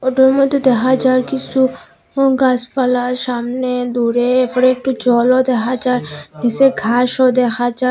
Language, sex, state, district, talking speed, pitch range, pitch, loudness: Bengali, female, Assam, Hailakandi, 130 wpm, 245-260 Hz, 255 Hz, -15 LUFS